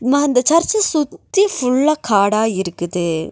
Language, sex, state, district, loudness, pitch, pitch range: Tamil, female, Tamil Nadu, Nilgiris, -16 LUFS, 255 Hz, 200-325 Hz